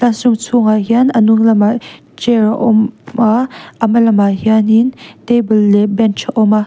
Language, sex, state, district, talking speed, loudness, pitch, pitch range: Mizo, female, Mizoram, Aizawl, 170 wpm, -12 LUFS, 225 Hz, 215-240 Hz